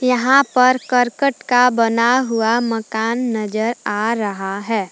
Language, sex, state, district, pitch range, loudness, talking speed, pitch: Hindi, female, Jharkhand, Palamu, 220-250 Hz, -17 LUFS, 135 wpm, 235 Hz